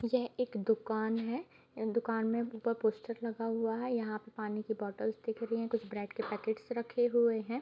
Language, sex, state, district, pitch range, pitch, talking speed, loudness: Hindi, female, Bihar, Bhagalpur, 220-235 Hz, 225 Hz, 205 wpm, -35 LUFS